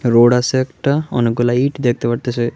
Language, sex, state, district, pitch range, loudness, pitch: Bengali, male, Tripura, West Tripura, 120-130 Hz, -16 LUFS, 120 Hz